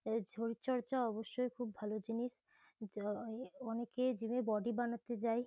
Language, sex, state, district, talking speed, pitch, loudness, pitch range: Bengali, female, West Bengal, Kolkata, 155 wpm, 235 Hz, -41 LUFS, 220-245 Hz